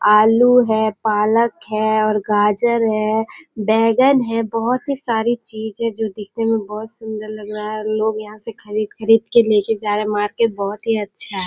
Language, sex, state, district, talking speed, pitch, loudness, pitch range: Hindi, female, Bihar, Kishanganj, 180 wpm, 220 Hz, -18 LUFS, 210-230 Hz